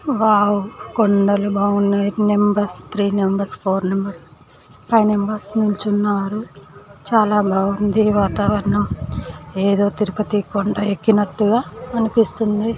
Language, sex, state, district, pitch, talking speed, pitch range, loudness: Telugu, female, Andhra Pradesh, Guntur, 205 Hz, 110 wpm, 200-215 Hz, -18 LUFS